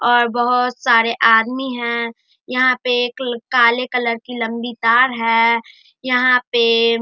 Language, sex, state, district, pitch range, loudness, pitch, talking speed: Hindi, male, Bihar, Darbhanga, 230-250 Hz, -16 LUFS, 240 Hz, 145 wpm